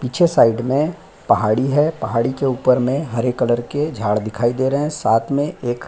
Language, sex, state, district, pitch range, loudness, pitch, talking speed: Hindi, male, Bihar, Lakhisarai, 120-145 Hz, -18 LUFS, 130 Hz, 215 wpm